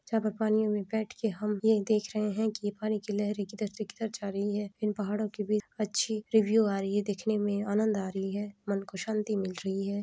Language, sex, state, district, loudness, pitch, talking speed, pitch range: Hindi, female, Chhattisgarh, Balrampur, -31 LUFS, 210 Hz, 255 wpm, 205-215 Hz